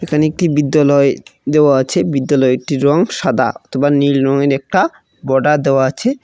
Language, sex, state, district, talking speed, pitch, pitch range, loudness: Bengali, male, West Bengal, Cooch Behar, 145 wpm, 140 Hz, 135-150 Hz, -14 LUFS